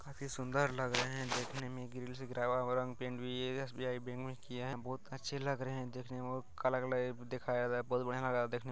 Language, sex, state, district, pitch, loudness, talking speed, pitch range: Maithili, male, Bihar, Kishanganj, 125 Hz, -39 LUFS, 260 wpm, 125-130 Hz